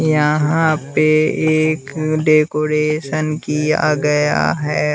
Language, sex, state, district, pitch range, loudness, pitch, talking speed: Hindi, male, Bihar, West Champaran, 150-155 Hz, -16 LUFS, 155 Hz, 85 wpm